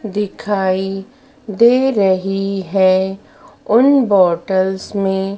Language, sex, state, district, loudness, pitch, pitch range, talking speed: Hindi, female, Madhya Pradesh, Dhar, -15 LUFS, 195 Hz, 190-215 Hz, 80 wpm